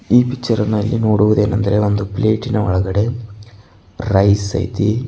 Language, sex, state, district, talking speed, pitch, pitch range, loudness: Kannada, male, Karnataka, Bidar, 120 wpm, 105 Hz, 100-110 Hz, -16 LUFS